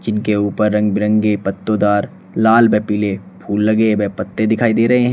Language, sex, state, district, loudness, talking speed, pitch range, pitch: Hindi, male, Uttar Pradesh, Shamli, -16 LUFS, 200 wpm, 105-110 Hz, 105 Hz